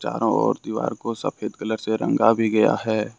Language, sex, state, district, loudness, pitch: Hindi, male, Jharkhand, Ranchi, -22 LUFS, 110 Hz